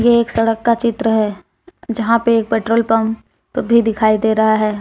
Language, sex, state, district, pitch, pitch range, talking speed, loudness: Hindi, female, Jharkhand, Deoghar, 225 Hz, 220-235 Hz, 200 wpm, -16 LUFS